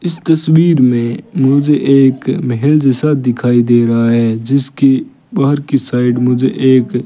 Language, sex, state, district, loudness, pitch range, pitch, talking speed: Hindi, male, Rajasthan, Bikaner, -12 LUFS, 120-145 Hz, 130 Hz, 155 wpm